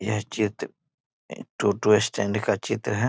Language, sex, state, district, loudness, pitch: Hindi, male, Bihar, East Champaran, -24 LUFS, 105 Hz